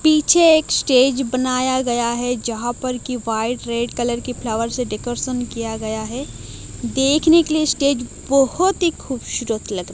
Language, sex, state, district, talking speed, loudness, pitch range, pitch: Hindi, female, Odisha, Malkangiri, 165 wpm, -19 LUFS, 235-275 Hz, 250 Hz